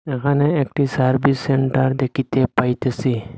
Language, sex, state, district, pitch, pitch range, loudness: Bengali, male, Assam, Hailakandi, 130 Hz, 130-140 Hz, -19 LUFS